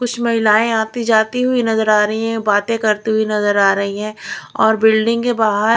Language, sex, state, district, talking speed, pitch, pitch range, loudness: Hindi, female, Chhattisgarh, Raipur, 210 wpm, 220 Hz, 210-230 Hz, -15 LUFS